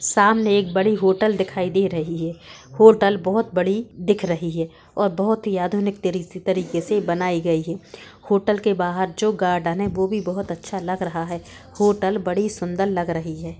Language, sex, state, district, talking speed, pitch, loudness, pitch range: Hindi, female, Bihar, Gaya, 180 wpm, 190 Hz, -21 LUFS, 175-205 Hz